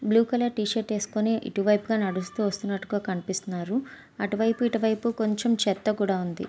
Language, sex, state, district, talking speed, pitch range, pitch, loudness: Telugu, female, Andhra Pradesh, Visakhapatnam, 150 wpm, 200-225 Hz, 215 Hz, -27 LUFS